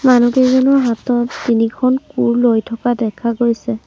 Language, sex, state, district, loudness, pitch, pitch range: Assamese, female, Assam, Sonitpur, -15 LUFS, 240 Hz, 230-255 Hz